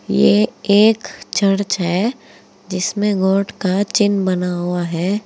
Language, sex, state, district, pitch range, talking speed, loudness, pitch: Hindi, female, Uttar Pradesh, Saharanpur, 180-205 Hz, 125 wpm, -17 LUFS, 195 Hz